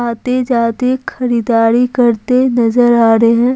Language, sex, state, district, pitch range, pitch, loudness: Hindi, female, Bihar, Patna, 230-250 Hz, 240 Hz, -12 LUFS